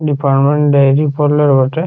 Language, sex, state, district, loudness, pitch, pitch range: Bengali, male, West Bengal, Jhargram, -12 LUFS, 145 Hz, 140-150 Hz